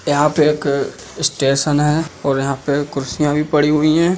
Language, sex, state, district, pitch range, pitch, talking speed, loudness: Hindi, male, Uttar Pradesh, Budaun, 140-150 Hz, 150 Hz, 185 wpm, -17 LUFS